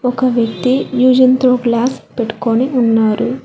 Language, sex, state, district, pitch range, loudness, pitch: Telugu, female, Telangana, Hyderabad, 235-255 Hz, -14 LUFS, 250 Hz